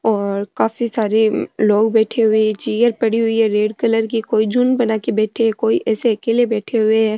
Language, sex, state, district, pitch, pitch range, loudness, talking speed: Rajasthani, female, Rajasthan, Nagaur, 220 Hz, 215-230 Hz, -17 LUFS, 215 wpm